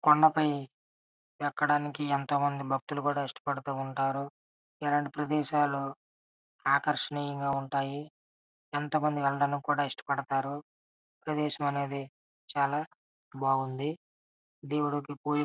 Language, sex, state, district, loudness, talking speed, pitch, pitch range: Telugu, male, Andhra Pradesh, Srikakulam, -31 LUFS, 60 wpm, 140 Hz, 135-145 Hz